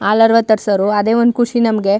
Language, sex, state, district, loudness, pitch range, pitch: Kannada, female, Karnataka, Chamarajanagar, -13 LUFS, 205-230 Hz, 220 Hz